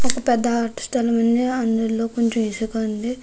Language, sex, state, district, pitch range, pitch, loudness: Telugu, female, Andhra Pradesh, Krishna, 225-245 Hz, 235 Hz, -21 LUFS